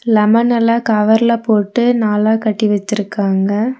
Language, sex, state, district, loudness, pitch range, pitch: Tamil, female, Tamil Nadu, Nilgiris, -14 LUFS, 210-230 Hz, 220 Hz